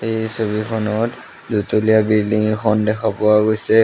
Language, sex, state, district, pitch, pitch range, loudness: Assamese, male, Assam, Sonitpur, 110 Hz, 105-110 Hz, -17 LUFS